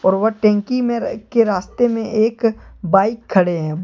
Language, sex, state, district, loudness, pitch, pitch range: Hindi, male, Jharkhand, Deoghar, -17 LUFS, 220 Hz, 195-230 Hz